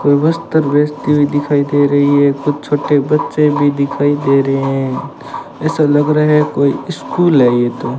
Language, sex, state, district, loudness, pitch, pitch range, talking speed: Hindi, male, Rajasthan, Bikaner, -13 LUFS, 145 Hz, 140-150 Hz, 185 wpm